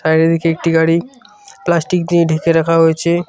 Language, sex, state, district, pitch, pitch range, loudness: Bengali, male, West Bengal, Cooch Behar, 165 Hz, 165-175 Hz, -14 LUFS